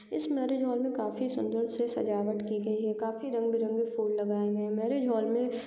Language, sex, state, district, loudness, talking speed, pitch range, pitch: Hindi, female, Uttar Pradesh, Deoria, -31 LUFS, 220 wpm, 215-245 Hz, 225 Hz